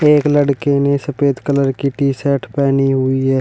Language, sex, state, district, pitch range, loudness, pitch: Hindi, male, Uttar Pradesh, Shamli, 135-145 Hz, -15 LUFS, 140 Hz